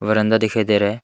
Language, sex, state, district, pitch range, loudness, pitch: Hindi, male, Arunachal Pradesh, Longding, 105-110 Hz, -18 LUFS, 110 Hz